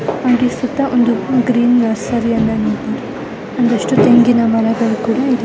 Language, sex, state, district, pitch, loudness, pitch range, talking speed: Kannada, female, Karnataka, Mysore, 240 Hz, -14 LUFS, 225-250 Hz, 130 wpm